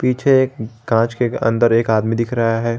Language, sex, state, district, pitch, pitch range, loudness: Hindi, male, Jharkhand, Garhwa, 115 Hz, 115-125 Hz, -17 LUFS